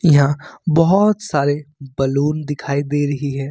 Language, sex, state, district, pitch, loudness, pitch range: Hindi, male, Jharkhand, Ranchi, 145 Hz, -18 LUFS, 140-155 Hz